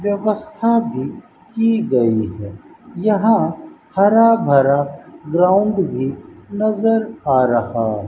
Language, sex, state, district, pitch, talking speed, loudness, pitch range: Hindi, male, Rajasthan, Bikaner, 200 Hz, 95 wpm, -17 LUFS, 135-225 Hz